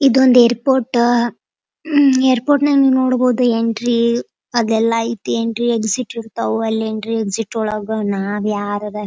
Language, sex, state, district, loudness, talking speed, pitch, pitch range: Kannada, female, Karnataka, Dharwad, -16 LUFS, 95 wpm, 230 Hz, 220-255 Hz